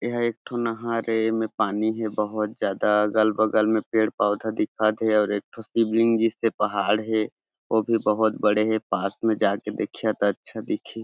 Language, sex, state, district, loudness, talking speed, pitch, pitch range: Chhattisgarhi, male, Chhattisgarh, Jashpur, -24 LUFS, 185 wpm, 110 Hz, 105-115 Hz